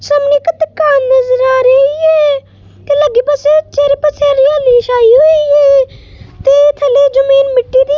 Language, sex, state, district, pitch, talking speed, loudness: Punjabi, female, Punjab, Kapurthala, 295 Hz, 165 wpm, -9 LUFS